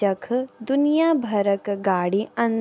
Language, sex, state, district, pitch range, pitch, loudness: Garhwali, female, Uttarakhand, Tehri Garhwal, 200-265 Hz, 225 Hz, -22 LUFS